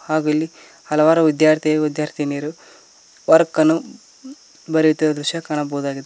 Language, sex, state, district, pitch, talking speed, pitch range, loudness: Kannada, male, Karnataka, Koppal, 155 Hz, 100 wpm, 150-160 Hz, -18 LUFS